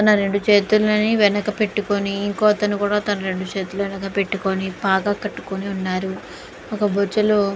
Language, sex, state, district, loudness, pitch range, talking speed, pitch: Telugu, female, Andhra Pradesh, Guntur, -20 LUFS, 195-210 Hz, 135 wpm, 205 Hz